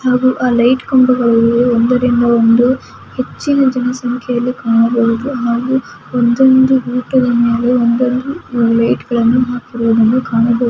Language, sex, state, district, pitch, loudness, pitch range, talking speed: Kannada, female, Karnataka, Mysore, 245 Hz, -13 LUFS, 235-255 Hz, 95 wpm